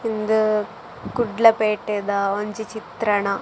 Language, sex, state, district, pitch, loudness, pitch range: Tulu, female, Karnataka, Dakshina Kannada, 215 Hz, -21 LUFS, 205-220 Hz